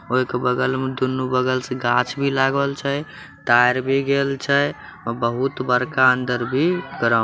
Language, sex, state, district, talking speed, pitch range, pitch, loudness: Maithili, male, Bihar, Samastipur, 180 wpm, 125-140 Hz, 130 Hz, -20 LUFS